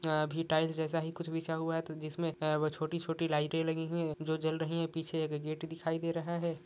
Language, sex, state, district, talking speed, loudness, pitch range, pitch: Hindi, male, Jharkhand, Jamtara, 235 wpm, -35 LUFS, 155-165 Hz, 160 Hz